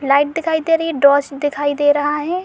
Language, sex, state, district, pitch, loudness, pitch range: Hindi, female, Uttar Pradesh, Muzaffarnagar, 290 Hz, -16 LUFS, 285-325 Hz